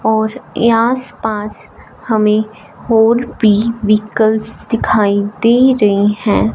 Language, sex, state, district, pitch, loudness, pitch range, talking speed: Hindi, male, Punjab, Fazilka, 220 Hz, -14 LUFS, 210-230 Hz, 100 wpm